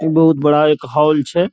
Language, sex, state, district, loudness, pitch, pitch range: Hindi, male, Bihar, Araria, -14 LUFS, 150 Hz, 150-160 Hz